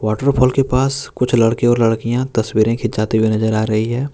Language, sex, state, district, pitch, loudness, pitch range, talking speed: Hindi, male, Jharkhand, Deoghar, 115 Hz, -16 LUFS, 110-130 Hz, 205 wpm